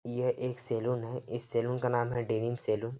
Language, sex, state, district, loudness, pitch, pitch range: Hindi, male, Jharkhand, Jamtara, -33 LUFS, 120 Hz, 115-125 Hz